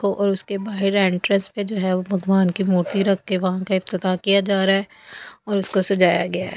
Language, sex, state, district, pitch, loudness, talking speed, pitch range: Hindi, female, Delhi, New Delhi, 195 Hz, -20 LUFS, 230 wpm, 185-200 Hz